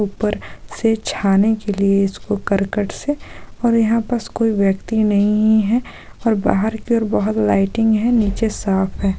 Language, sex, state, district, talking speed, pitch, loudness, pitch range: Hindi, female, Jharkhand, Sahebganj, 165 wpm, 215 Hz, -18 LUFS, 200-225 Hz